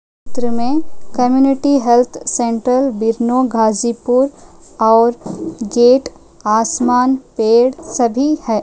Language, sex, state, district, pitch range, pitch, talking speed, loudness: Hindi, female, Uttar Pradesh, Ghazipur, 230-265 Hz, 245 Hz, 90 wpm, -15 LUFS